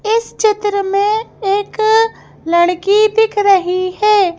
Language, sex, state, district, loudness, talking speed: Hindi, female, Madhya Pradesh, Bhopal, -14 LUFS, 110 wpm